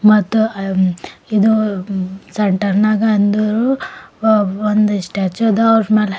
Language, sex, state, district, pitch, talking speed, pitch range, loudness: Kannada, female, Karnataka, Bidar, 210 Hz, 115 wpm, 195-220 Hz, -15 LUFS